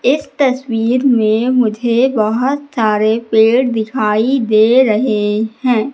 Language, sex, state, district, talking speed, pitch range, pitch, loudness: Hindi, female, Madhya Pradesh, Katni, 110 wpm, 220-255 Hz, 235 Hz, -14 LUFS